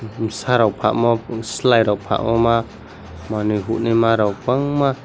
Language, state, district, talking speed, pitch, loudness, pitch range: Kokborok, Tripura, West Tripura, 145 wpm, 115 Hz, -18 LUFS, 105-115 Hz